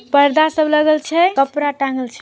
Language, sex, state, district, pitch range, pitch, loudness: Magahi, female, Bihar, Samastipur, 275-310 Hz, 295 Hz, -15 LUFS